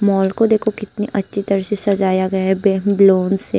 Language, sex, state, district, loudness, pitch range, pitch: Hindi, female, Tripura, Unakoti, -16 LUFS, 190-210 Hz, 200 Hz